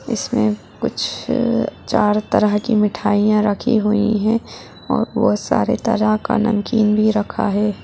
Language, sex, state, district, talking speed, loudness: Hindi, female, Bihar, Muzaffarpur, 140 wpm, -18 LUFS